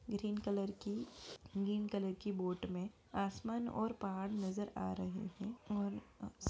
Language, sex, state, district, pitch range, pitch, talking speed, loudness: Hindi, female, Bihar, Begusarai, 195-210 Hz, 200 Hz, 165 wpm, -42 LUFS